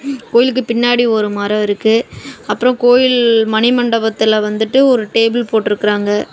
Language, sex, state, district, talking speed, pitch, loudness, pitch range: Tamil, female, Tamil Nadu, Namakkal, 125 wpm, 230 Hz, -13 LUFS, 215-245 Hz